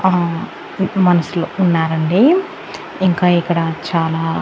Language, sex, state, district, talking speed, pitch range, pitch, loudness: Telugu, female, Andhra Pradesh, Annamaya, 95 wpm, 165-190 Hz, 175 Hz, -16 LUFS